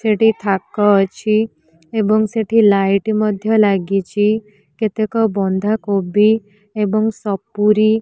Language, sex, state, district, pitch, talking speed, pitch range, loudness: Odia, female, Odisha, Nuapada, 210 Hz, 95 wpm, 200-220 Hz, -16 LUFS